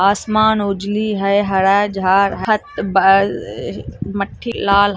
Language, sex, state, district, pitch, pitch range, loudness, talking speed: Hindi, female, Andhra Pradesh, Anantapur, 200 Hz, 195-215 Hz, -16 LUFS, 110 wpm